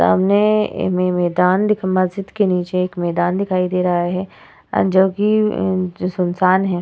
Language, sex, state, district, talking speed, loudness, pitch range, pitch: Hindi, female, Uttar Pradesh, Etah, 175 wpm, -17 LUFS, 180-195 Hz, 185 Hz